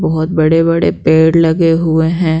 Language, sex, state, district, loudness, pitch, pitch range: Hindi, female, Bihar, Patna, -12 LUFS, 160 Hz, 160-165 Hz